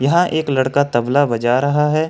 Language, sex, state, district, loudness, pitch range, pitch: Hindi, male, Jharkhand, Ranchi, -16 LUFS, 130-155 Hz, 140 Hz